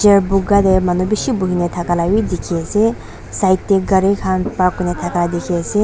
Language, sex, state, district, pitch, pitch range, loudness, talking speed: Nagamese, female, Nagaland, Dimapur, 185 Hz, 175-200 Hz, -16 LUFS, 205 wpm